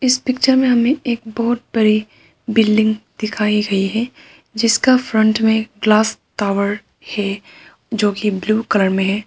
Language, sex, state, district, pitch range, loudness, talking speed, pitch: Hindi, female, Arunachal Pradesh, Papum Pare, 210-230 Hz, -17 LUFS, 150 wpm, 220 Hz